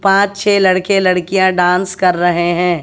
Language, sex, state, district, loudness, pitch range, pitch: Hindi, female, Haryana, Jhajjar, -13 LUFS, 180-195 Hz, 185 Hz